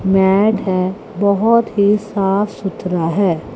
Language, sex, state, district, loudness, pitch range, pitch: Hindi, female, Chandigarh, Chandigarh, -16 LUFS, 190-205 Hz, 195 Hz